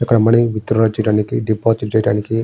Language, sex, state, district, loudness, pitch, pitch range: Telugu, male, Andhra Pradesh, Srikakulam, -16 LUFS, 110 Hz, 105-115 Hz